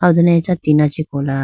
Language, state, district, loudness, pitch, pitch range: Idu Mishmi, Arunachal Pradesh, Lower Dibang Valley, -15 LUFS, 155 Hz, 145-170 Hz